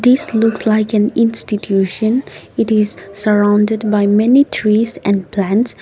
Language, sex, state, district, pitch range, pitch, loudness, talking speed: English, female, Nagaland, Kohima, 205-225 Hz, 215 Hz, -14 LUFS, 135 wpm